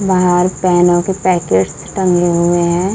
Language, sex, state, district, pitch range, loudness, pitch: Hindi, female, Uttar Pradesh, Muzaffarnagar, 175-185 Hz, -13 LUFS, 175 Hz